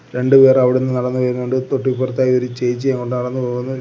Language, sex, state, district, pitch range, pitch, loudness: Malayalam, male, Kerala, Kollam, 125-130 Hz, 125 Hz, -16 LUFS